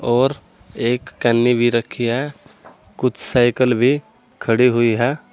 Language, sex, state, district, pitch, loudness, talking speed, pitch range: Hindi, male, Uttar Pradesh, Saharanpur, 120 Hz, -18 LUFS, 135 wpm, 120-130 Hz